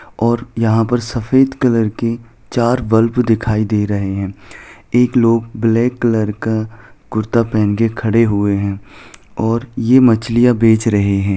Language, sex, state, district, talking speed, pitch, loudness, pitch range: Hindi, male, Jharkhand, Sahebganj, 155 wpm, 115 Hz, -15 LUFS, 110-120 Hz